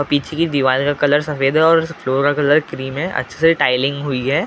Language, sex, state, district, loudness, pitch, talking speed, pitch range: Hindi, male, Maharashtra, Gondia, -17 LUFS, 145 Hz, 255 wpm, 135-155 Hz